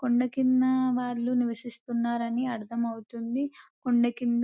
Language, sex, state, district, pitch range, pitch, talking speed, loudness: Telugu, female, Telangana, Nalgonda, 235-255 Hz, 240 Hz, 95 wpm, -28 LUFS